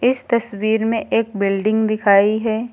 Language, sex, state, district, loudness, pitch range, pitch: Hindi, female, Uttar Pradesh, Lucknow, -18 LUFS, 210-230 Hz, 220 Hz